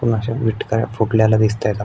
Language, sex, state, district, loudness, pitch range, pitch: Marathi, male, Maharashtra, Aurangabad, -18 LUFS, 110-115 Hz, 110 Hz